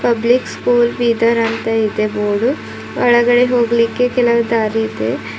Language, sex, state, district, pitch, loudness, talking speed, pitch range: Kannada, female, Karnataka, Bidar, 235 Hz, -15 LUFS, 110 wpm, 225-240 Hz